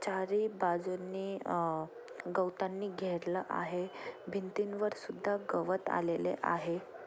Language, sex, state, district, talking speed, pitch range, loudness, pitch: Marathi, female, Maharashtra, Aurangabad, 95 wpm, 180-205 Hz, -36 LUFS, 190 Hz